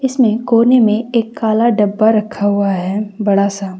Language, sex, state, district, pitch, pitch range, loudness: Hindi, female, Jharkhand, Deoghar, 215 Hz, 200-230 Hz, -14 LUFS